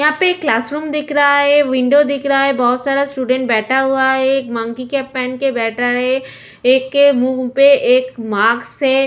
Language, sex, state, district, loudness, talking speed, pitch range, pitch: Hindi, female, Chhattisgarh, Sukma, -14 LUFS, 205 wpm, 250-280 Hz, 265 Hz